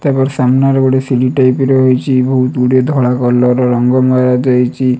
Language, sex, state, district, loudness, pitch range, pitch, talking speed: Odia, male, Odisha, Malkangiri, -11 LUFS, 125-130 Hz, 130 Hz, 145 wpm